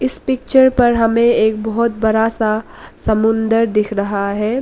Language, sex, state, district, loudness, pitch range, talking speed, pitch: Hindi, female, Arunachal Pradesh, Lower Dibang Valley, -15 LUFS, 215-235 Hz, 155 wpm, 225 Hz